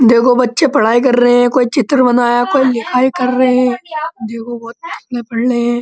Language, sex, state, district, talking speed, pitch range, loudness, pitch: Hindi, male, Uttar Pradesh, Muzaffarnagar, 195 wpm, 240-255 Hz, -13 LUFS, 245 Hz